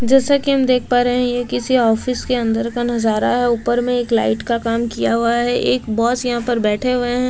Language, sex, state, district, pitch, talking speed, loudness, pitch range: Hindi, female, Delhi, New Delhi, 245 Hz, 255 wpm, -17 LUFS, 230-250 Hz